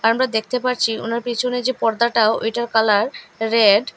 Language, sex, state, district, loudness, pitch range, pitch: Bengali, female, Assam, Hailakandi, -19 LUFS, 220-240 Hz, 230 Hz